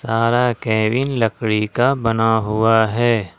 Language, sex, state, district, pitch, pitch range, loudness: Hindi, male, Jharkhand, Ranchi, 115 Hz, 110-120 Hz, -17 LUFS